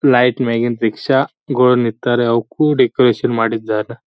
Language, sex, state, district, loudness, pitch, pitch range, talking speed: Kannada, male, Karnataka, Bijapur, -15 LUFS, 120 Hz, 115-125 Hz, 115 wpm